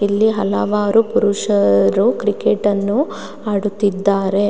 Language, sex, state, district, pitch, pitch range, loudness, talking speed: Kannada, female, Karnataka, Mysore, 205 Hz, 200-210 Hz, -16 LUFS, 80 wpm